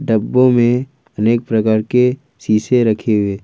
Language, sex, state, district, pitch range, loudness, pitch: Hindi, male, Jharkhand, Ranchi, 110-125 Hz, -15 LUFS, 115 Hz